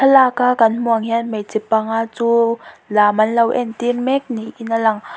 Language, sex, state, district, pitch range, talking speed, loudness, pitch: Mizo, female, Mizoram, Aizawl, 220-245 Hz, 195 wpm, -17 LUFS, 230 Hz